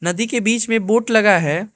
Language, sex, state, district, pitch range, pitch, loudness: Hindi, male, Arunachal Pradesh, Lower Dibang Valley, 195-230 Hz, 220 Hz, -16 LUFS